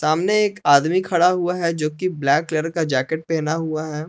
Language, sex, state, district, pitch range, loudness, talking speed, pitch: Hindi, male, Jharkhand, Palamu, 155-180 Hz, -20 LUFS, 220 wpm, 160 Hz